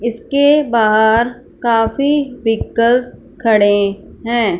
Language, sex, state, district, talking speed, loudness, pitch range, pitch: Hindi, female, Punjab, Fazilka, 80 wpm, -14 LUFS, 225-255 Hz, 235 Hz